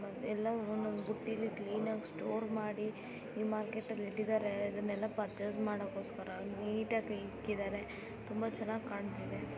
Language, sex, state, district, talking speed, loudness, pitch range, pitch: Kannada, female, Karnataka, Belgaum, 125 wpm, -39 LUFS, 205-220 Hz, 215 Hz